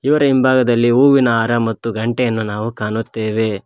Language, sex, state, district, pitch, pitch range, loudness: Kannada, male, Karnataka, Koppal, 115 Hz, 110-130 Hz, -16 LUFS